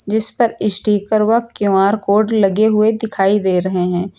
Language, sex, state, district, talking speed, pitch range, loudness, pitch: Hindi, female, Uttar Pradesh, Lucknow, 155 wpm, 195-220 Hz, -15 LUFS, 210 Hz